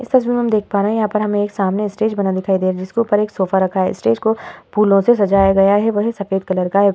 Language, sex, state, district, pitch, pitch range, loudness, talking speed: Hindi, female, Uttar Pradesh, Hamirpur, 200 Hz, 190-215 Hz, -16 LUFS, 310 wpm